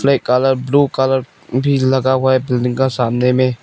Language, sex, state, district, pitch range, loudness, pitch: Hindi, male, Nagaland, Kohima, 125-135 Hz, -15 LUFS, 130 Hz